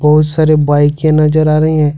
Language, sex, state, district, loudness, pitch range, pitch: Hindi, male, Jharkhand, Ranchi, -11 LUFS, 150-155 Hz, 155 Hz